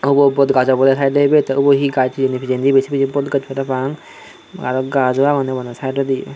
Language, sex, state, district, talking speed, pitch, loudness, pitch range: Chakma, male, Tripura, Dhalai, 140 wpm, 135 Hz, -16 LUFS, 130-140 Hz